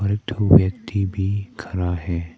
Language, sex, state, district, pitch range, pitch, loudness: Hindi, male, Arunachal Pradesh, Papum Pare, 90-100 Hz, 95 Hz, -21 LUFS